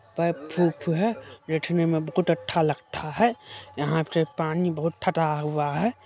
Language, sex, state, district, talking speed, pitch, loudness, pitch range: Hindi, male, Bihar, Supaul, 160 wpm, 165 Hz, -26 LUFS, 150-175 Hz